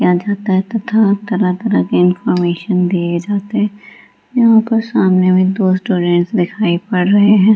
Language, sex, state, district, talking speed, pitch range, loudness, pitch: Hindi, female, Bihar, Gaya, 165 wpm, 180-210 Hz, -14 LUFS, 195 Hz